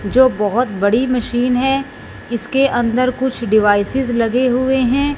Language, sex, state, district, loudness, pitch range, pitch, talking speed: Hindi, female, Punjab, Fazilka, -16 LUFS, 230-260 Hz, 250 Hz, 140 wpm